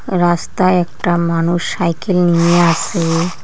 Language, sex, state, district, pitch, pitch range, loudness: Bengali, female, West Bengal, Cooch Behar, 175 Hz, 170-180 Hz, -15 LUFS